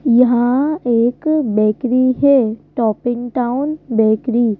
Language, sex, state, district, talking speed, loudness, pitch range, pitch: Hindi, female, Madhya Pradesh, Bhopal, 115 wpm, -16 LUFS, 230-270 Hz, 245 Hz